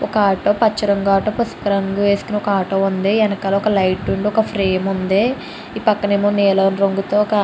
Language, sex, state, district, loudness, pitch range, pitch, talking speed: Telugu, female, Andhra Pradesh, Chittoor, -17 LUFS, 195-210 Hz, 200 Hz, 185 wpm